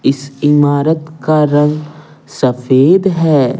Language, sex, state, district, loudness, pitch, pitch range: Hindi, male, Bihar, Patna, -12 LUFS, 150 Hz, 140-155 Hz